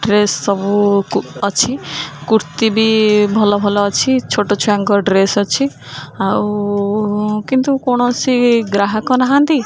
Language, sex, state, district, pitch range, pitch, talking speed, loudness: Odia, female, Odisha, Khordha, 200-230 Hz, 210 Hz, 120 wpm, -14 LUFS